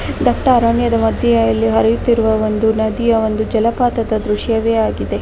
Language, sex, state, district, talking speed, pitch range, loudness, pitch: Kannada, female, Karnataka, Dharwad, 140 wpm, 210-230 Hz, -15 LUFS, 220 Hz